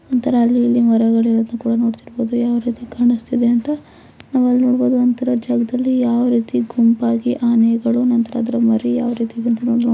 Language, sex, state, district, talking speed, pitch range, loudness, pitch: Kannada, female, Karnataka, Belgaum, 165 wpm, 235-245 Hz, -17 LUFS, 240 Hz